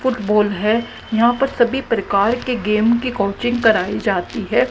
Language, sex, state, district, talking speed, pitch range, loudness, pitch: Hindi, female, Haryana, Jhajjar, 165 wpm, 210-245 Hz, -18 LUFS, 230 Hz